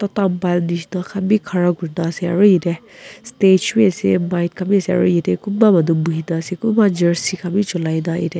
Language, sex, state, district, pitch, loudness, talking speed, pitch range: Nagamese, female, Nagaland, Kohima, 180 Hz, -17 LUFS, 180 wpm, 170-200 Hz